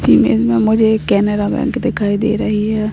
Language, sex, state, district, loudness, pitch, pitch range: Hindi, female, Bihar, Madhepura, -15 LUFS, 210 Hz, 200-220 Hz